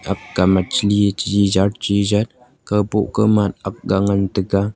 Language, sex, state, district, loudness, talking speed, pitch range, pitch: Wancho, male, Arunachal Pradesh, Longding, -18 LUFS, 115 wpm, 100-105 Hz, 100 Hz